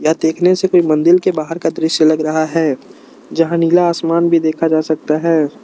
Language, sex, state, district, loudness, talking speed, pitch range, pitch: Hindi, male, Arunachal Pradesh, Lower Dibang Valley, -14 LUFS, 215 wpm, 155-170 Hz, 160 Hz